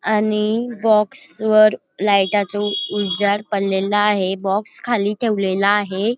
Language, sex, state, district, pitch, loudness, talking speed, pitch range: Marathi, female, Maharashtra, Dhule, 205 Hz, -18 LUFS, 105 wpm, 200-215 Hz